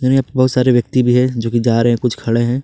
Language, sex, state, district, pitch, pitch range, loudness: Hindi, male, Jharkhand, Ranchi, 125 Hz, 120-130 Hz, -15 LUFS